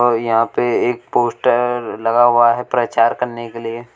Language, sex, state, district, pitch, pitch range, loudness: Hindi, male, Uttar Pradesh, Shamli, 120 Hz, 115-120 Hz, -16 LUFS